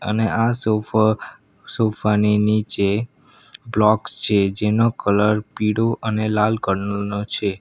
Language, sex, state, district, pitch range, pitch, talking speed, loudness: Gujarati, male, Gujarat, Valsad, 105-110 Hz, 105 Hz, 125 wpm, -20 LUFS